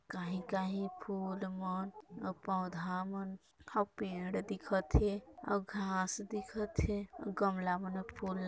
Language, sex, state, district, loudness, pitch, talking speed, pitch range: Hindi, female, Chhattisgarh, Balrampur, -38 LUFS, 190 Hz, 135 wpm, 185-205 Hz